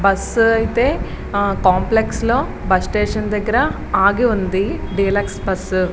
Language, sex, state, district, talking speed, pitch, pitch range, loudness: Telugu, female, Andhra Pradesh, Srikakulam, 120 wpm, 200 Hz, 190-220 Hz, -17 LUFS